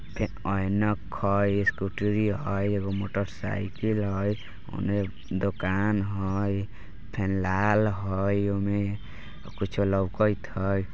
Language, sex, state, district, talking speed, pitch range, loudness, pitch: Bajjika, male, Bihar, Vaishali, 105 wpm, 95-105 Hz, -28 LUFS, 100 Hz